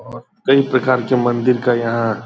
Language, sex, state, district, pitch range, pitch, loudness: Hindi, male, Bihar, Purnia, 115-130 Hz, 125 Hz, -16 LUFS